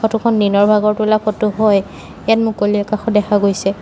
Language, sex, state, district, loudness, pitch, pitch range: Assamese, female, Assam, Sonitpur, -15 LUFS, 210 Hz, 205-215 Hz